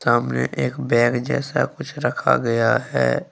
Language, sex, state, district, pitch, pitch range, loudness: Hindi, male, Jharkhand, Ranchi, 120 Hz, 115-120 Hz, -20 LUFS